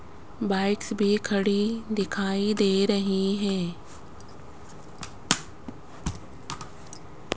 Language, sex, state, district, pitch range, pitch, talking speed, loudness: Hindi, female, Rajasthan, Jaipur, 195-210 Hz, 200 Hz, 55 wpm, -26 LUFS